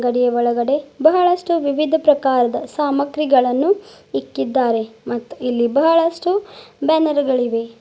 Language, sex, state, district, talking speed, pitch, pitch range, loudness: Kannada, female, Karnataka, Bidar, 100 wpm, 280 Hz, 245-315 Hz, -18 LUFS